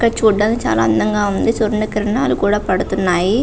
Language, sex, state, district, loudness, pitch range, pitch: Telugu, female, Andhra Pradesh, Visakhapatnam, -16 LUFS, 195-220 Hz, 210 Hz